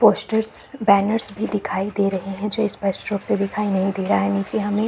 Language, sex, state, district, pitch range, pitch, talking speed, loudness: Hindi, female, Bihar, Saran, 195-215 Hz, 205 Hz, 235 wpm, -22 LUFS